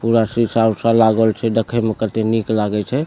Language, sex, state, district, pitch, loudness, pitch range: Maithili, male, Bihar, Supaul, 115 Hz, -17 LUFS, 110-115 Hz